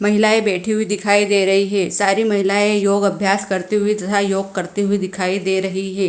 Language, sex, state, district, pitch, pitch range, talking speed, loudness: Hindi, female, Punjab, Fazilka, 200 Hz, 190-205 Hz, 205 wpm, -17 LUFS